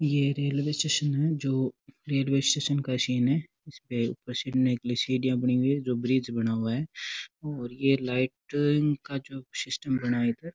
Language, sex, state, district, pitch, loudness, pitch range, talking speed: Marwari, male, Rajasthan, Nagaur, 135 Hz, -28 LUFS, 125-145 Hz, 195 wpm